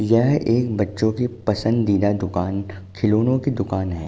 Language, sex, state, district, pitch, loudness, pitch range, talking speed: Hindi, male, Uttar Pradesh, Jalaun, 105 Hz, -21 LUFS, 95-115 Hz, 145 wpm